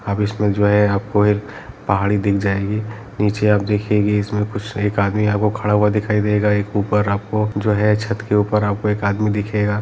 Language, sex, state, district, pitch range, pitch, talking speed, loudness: Hindi, male, Jharkhand, Jamtara, 100-105 Hz, 105 Hz, 215 wpm, -18 LUFS